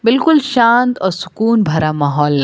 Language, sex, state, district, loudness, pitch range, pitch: Hindi, female, Uttar Pradesh, Lucknow, -14 LUFS, 155-245 Hz, 220 Hz